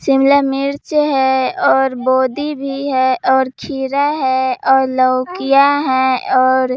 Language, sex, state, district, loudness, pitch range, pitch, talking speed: Hindi, female, Jharkhand, Palamu, -14 LUFS, 260-280 Hz, 265 Hz, 135 wpm